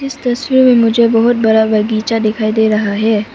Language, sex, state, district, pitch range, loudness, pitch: Hindi, female, Arunachal Pradesh, Papum Pare, 215-240 Hz, -12 LUFS, 225 Hz